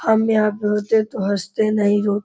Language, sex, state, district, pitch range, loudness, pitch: Hindi, male, Uttar Pradesh, Gorakhpur, 205-220 Hz, -19 LUFS, 210 Hz